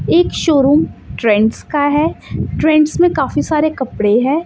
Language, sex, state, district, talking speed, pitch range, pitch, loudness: Hindi, female, Chandigarh, Chandigarh, 150 wpm, 265-315 Hz, 300 Hz, -14 LUFS